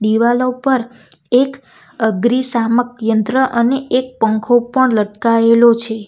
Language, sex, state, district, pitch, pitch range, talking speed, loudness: Gujarati, female, Gujarat, Valsad, 235 Hz, 225-255 Hz, 110 wpm, -14 LUFS